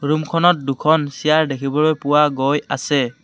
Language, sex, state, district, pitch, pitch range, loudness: Assamese, male, Assam, Kamrup Metropolitan, 150 Hz, 140-155 Hz, -17 LUFS